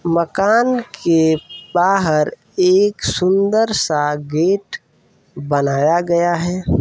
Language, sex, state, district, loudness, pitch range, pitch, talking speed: Hindi, male, Uttar Pradesh, Varanasi, -16 LUFS, 155-195 Hz, 175 Hz, 90 wpm